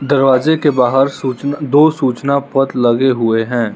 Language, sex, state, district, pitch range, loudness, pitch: Hindi, male, Arunachal Pradesh, Lower Dibang Valley, 125-140 Hz, -14 LUFS, 135 Hz